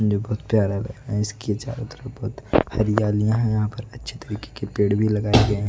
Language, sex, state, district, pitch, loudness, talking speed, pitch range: Hindi, male, Odisha, Nuapada, 110 Hz, -23 LUFS, 230 wpm, 105-115 Hz